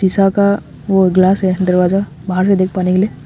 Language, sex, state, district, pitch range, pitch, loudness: Hindi, male, Arunachal Pradesh, Longding, 185-195 Hz, 185 Hz, -14 LUFS